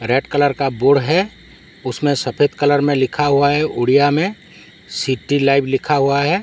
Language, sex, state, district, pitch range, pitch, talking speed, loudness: Hindi, male, Odisha, Sambalpur, 135-145 Hz, 140 Hz, 175 wpm, -16 LUFS